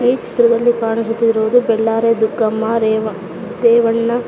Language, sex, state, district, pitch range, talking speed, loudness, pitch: Kannada, female, Karnataka, Dakshina Kannada, 220-235 Hz, 110 wpm, -15 LUFS, 230 Hz